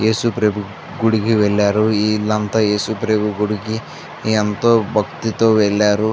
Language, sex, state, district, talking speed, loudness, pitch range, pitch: Telugu, male, Andhra Pradesh, Visakhapatnam, 115 wpm, -17 LUFS, 105-110 Hz, 110 Hz